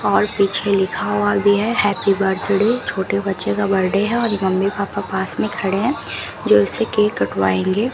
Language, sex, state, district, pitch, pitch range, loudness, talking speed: Hindi, female, Rajasthan, Bikaner, 200 Hz, 190-205 Hz, -18 LUFS, 180 wpm